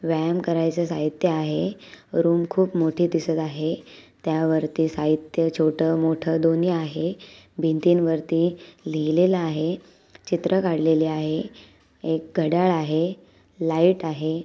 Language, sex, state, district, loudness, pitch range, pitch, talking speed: Marathi, female, Maharashtra, Nagpur, -23 LUFS, 160-175 Hz, 165 Hz, 110 wpm